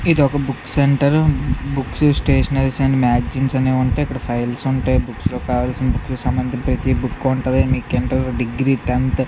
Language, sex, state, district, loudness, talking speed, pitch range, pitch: Telugu, male, Andhra Pradesh, Visakhapatnam, -18 LUFS, 110 wpm, 125-135 Hz, 130 Hz